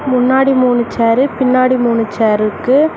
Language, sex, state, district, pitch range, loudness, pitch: Tamil, female, Tamil Nadu, Namakkal, 230-260 Hz, -13 LUFS, 250 Hz